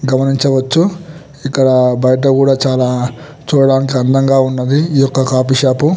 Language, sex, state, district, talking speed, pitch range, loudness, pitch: Telugu, male, Telangana, Nalgonda, 130 wpm, 130-140 Hz, -12 LUFS, 135 Hz